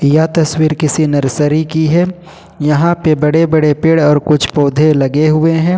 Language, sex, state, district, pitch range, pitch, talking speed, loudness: Hindi, male, Jharkhand, Ranchi, 150-160 Hz, 155 Hz, 175 wpm, -12 LUFS